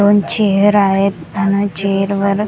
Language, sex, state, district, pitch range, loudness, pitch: Marathi, female, Maharashtra, Gondia, 195-205 Hz, -14 LUFS, 200 Hz